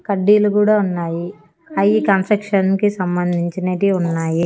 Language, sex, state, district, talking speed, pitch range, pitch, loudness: Telugu, female, Andhra Pradesh, Annamaya, 105 wpm, 175-205 Hz, 195 Hz, -17 LUFS